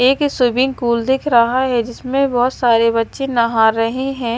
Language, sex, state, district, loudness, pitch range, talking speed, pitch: Hindi, female, Maharashtra, Mumbai Suburban, -16 LUFS, 235-265 Hz, 180 wpm, 245 Hz